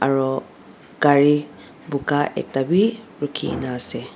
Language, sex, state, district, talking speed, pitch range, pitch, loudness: Nagamese, female, Nagaland, Dimapur, 115 wpm, 135-150 Hz, 145 Hz, -21 LUFS